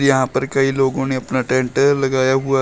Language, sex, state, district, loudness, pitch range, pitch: Hindi, male, Uttar Pradesh, Shamli, -17 LUFS, 130-135 Hz, 135 Hz